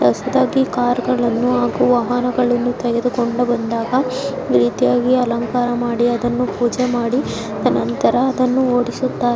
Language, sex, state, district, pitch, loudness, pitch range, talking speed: Kannada, male, Karnataka, Bijapur, 245 Hz, -17 LUFS, 240-250 Hz, 95 wpm